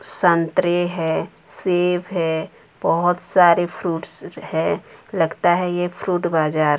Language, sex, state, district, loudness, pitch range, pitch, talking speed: Hindi, female, Odisha, Sambalpur, -20 LUFS, 165-180 Hz, 175 Hz, 115 wpm